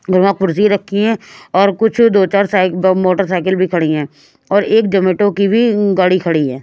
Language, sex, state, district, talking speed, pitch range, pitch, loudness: Hindi, female, Haryana, Rohtak, 180 wpm, 185-205 Hz, 195 Hz, -13 LUFS